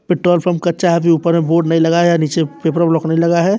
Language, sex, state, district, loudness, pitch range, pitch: Hindi, male, Bihar, West Champaran, -14 LUFS, 165-175 Hz, 170 Hz